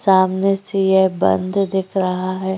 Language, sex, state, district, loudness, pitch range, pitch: Hindi, female, Uttar Pradesh, Jyotiba Phule Nagar, -18 LUFS, 185-195 Hz, 190 Hz